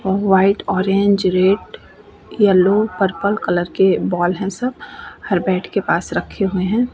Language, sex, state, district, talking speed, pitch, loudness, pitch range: Hindi, female, Uttar Pradesh, Varanasi, 145 wpm, 195 Hz, -17 LUFS, 185-200 Hz